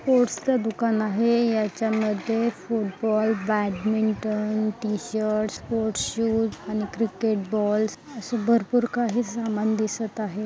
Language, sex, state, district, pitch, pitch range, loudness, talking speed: Marathi, female, Maharashtra, Solapur, 220 Hz, 215-230 Hz, -25 LUFS, 105 wpm